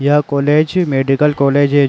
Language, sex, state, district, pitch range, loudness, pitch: Hindi, male, Uttar Pradesh, Jalaun, 140-150 Hz, -14 LUFS, 145 Hz